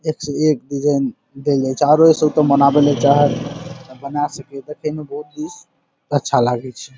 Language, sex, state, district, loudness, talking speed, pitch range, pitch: Maithili, male, Bihar, Saharsa, -17 LUFS, 180 wpm, 135-150 Hz, 145 Hz